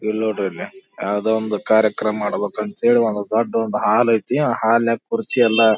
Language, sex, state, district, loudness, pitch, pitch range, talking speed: Kannada, male, Karnataka, Bijapur, -19 LUFS, 110 Hz, 105-115 Hz, 155 wpm